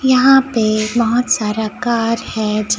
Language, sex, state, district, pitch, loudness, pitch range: Hindi, male, Chhattisgarh, Raipur, 225 Hz, -15 LUFS, 215-245 Hz